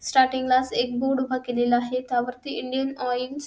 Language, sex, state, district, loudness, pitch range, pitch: Marathi, female, Maharashtra, Sindhudurg, -24 LUFS, 245-260 Hz, 255 Hz